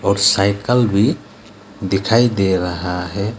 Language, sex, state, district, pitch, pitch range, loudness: Hindi, male, West Bengal, Alipurduar, 100 Hz, 95-110 Hz, -16 LUFS